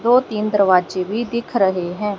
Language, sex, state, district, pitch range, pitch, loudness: Hindi, female, Haryana, Rohtak, 185-230 Hz, 205 Hz, -18 LUFS